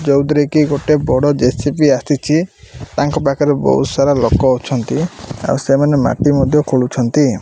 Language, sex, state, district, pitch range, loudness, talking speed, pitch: Odia, male, Odisha, Malkangiri, 135-150 Hz, -14 LUFS, 115 wpm, 145 Hz